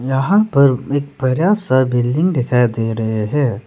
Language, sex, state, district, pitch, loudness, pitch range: Hindi, male, Arunachal Pradesh, Lower Dibang Valley, 130 Hz, -16 LUFS, 120-145 Hz